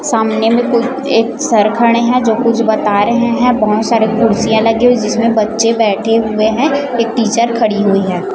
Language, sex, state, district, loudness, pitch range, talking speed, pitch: Hindi, female, Chhattisgarh, Raipur, -12 LUFS, 220-235 Hz, 195 wpm, 230 Hz